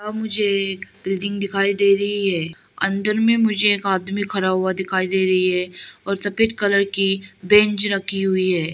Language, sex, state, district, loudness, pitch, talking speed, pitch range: Hindi, female, Arunachal Pradesh, Lower Dibang Valley, -19 LUFS, 195 Hz, 180 wpm, 190-205 Hz